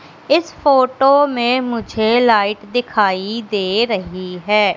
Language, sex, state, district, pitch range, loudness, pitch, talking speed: Hindi, female, Madhya Pradesh, Katni, 205-255 Hz, -16 LUFS, 225 Hz, 115 wpm